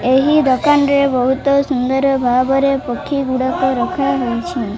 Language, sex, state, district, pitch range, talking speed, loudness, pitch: Odia, female, Odisha, Malkangiri, 255-280 Hz, 100 wpm, -15 LUFS, 265 Hz